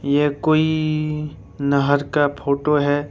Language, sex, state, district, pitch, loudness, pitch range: Hindi, male, Jharkhand, Ranchi, 145 Hz, -20 LUFS, 140-155 Hz